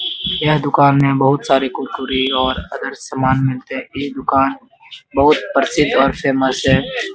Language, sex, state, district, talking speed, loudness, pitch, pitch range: Hindi, male, Bihar, Jamui, 170 wpm, -16 LUFS, 135 Hz, 130-145 Hz